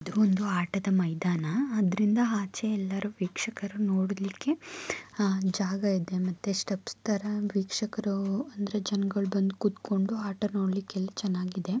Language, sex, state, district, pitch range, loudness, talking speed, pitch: Kannada, female, Karnataka, Mysore, 190-210 Hz, -30 LUFS, 80 wpm, 200 Hz